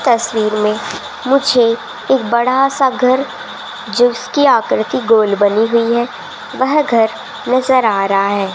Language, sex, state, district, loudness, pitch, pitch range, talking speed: Hindi, female, Rajasthan, Jaipur, -14 LUFS, 240 Hz, 220-265 Hz, 135 wpm